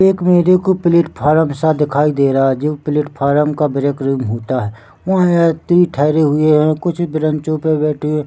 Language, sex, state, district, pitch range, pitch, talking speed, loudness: Hindi, male, Chhattisgarh, Bilaspur, 145-170 Hz, 150 Hz, 180 wpm, -15 LUFS